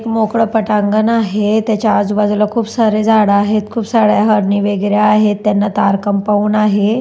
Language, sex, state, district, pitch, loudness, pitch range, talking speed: Marathi, female, Maharashtra, Dhule, 210 Hz, -13 LUFS, 205-220 Hz, 155 wpm